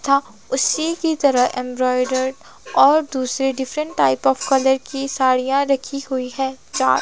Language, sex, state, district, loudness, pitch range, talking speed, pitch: Hindi, female, Himachal Pradesh, Shimla, -19 LUFS, 255-275 Hz, 145 wpm, 265 Hz